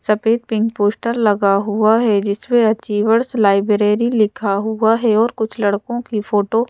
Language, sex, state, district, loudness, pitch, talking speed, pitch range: Hindi, female, Madhya Pradesh, Bhopal, -16 LUFS, 220 Hz, 160 wpm, 205-230 Hz